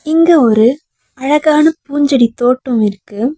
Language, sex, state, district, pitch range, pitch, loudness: Tamil, female, Tamil Nadu, Nilgiris, 235-305 Hz, 270 Hz, -12 LUFS